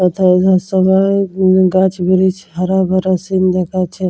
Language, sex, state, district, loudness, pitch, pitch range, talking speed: Bengali, female, West Bengal, Jalpaiguri, -13 LUFS, 185 Hz, 185-190 Hz, 145 wpm